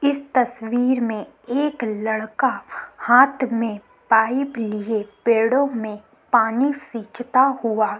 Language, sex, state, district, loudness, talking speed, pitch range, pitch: Hindi, female, Uttarakhand, Tehri Garhwal, -20 LUFS, 110 wpm, 220-265 Hz, 235 Hz